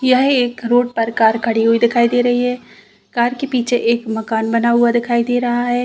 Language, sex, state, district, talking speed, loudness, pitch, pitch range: Hindi, female, Uttar Pradesh, Varanasi, 225 wpm, -16 LUFS, 240 Hz, 230-245 Hz